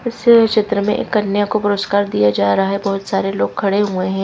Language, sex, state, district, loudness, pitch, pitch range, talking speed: Hindi, female, Chhattisgarh, Raipur, -16 LUFS, 200 Hz, 190-210 Hz, 240 wpm